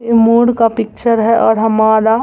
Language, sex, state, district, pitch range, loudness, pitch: Hindi, female, Bihar, Samastipur, 220-230 Hz, -12 LUFS, 225 Hz